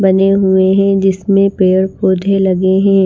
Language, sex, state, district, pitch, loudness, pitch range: Hindi, female, Maharashtra, Washim, 190 Hz, -12 LUFS, 190-195 Hz